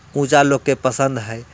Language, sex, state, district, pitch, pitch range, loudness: Bhojpuri, male, Bihar, Muzaffarpur, 135 Hz, 130-140 Hz, -17 LUFS